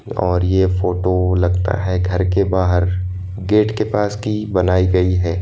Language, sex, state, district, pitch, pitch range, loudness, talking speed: Hindi, male, Madhya Pradesh, Bhopal, 90 Hz, 90-100 Hz, -17 LUFS, 165 wpm